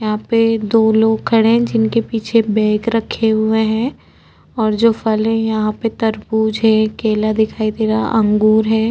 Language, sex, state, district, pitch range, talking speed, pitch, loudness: Hindi, female, Uttarakhand, Tehri Garhwal, 215-225 Hz, 160 wpm, 220 Hz, -15 LUFS